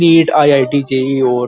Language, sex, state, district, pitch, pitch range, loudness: Hindi, male, Uttar Pradesh, Muzaffarnagar, 135 Hz, 130-150 Hz, -12 LUFS